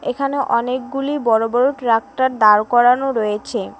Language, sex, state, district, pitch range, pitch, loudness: Bengali, female, West Bengal, Cooch Behar, 225-270 Hz, 250 Hz, -17 LUFS